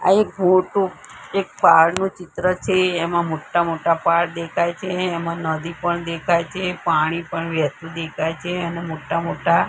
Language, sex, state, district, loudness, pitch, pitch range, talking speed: Gujarati, female, Gujarat, Gandhinagar, -20 LUFS, 170 Hz, 165-185 Hz, 165 wpm